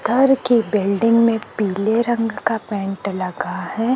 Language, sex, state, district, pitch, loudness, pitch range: Hindi, female, Chhattisgarh, Sukma, 225 Hz, -19 LUFS, 200-235 Hz